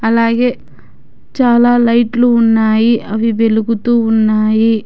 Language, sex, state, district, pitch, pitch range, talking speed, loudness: Telugu, female, Telangana, Hyderabad, 230 Hz, 220-240 Hz, 85 wpm, -12 LUFS